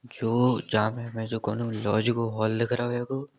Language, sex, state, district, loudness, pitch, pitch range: Bundeli, male, Uttar Pradesh, Jalaun, -27 LUFS, 115 Hz, 110-120 Hz